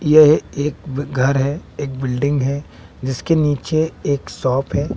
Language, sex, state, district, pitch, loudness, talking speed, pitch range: Hindi, male, Bihar, West Champaran, 140 Hz, -19 LUFS, 145 wpm, 135-150 Hz